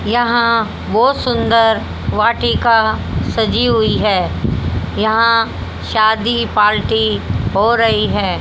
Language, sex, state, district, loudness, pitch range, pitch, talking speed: Hindi, female, Haryana, Jhajjar, -14 LUFS, 210-230 Hz, 225 Hz, 95 wpm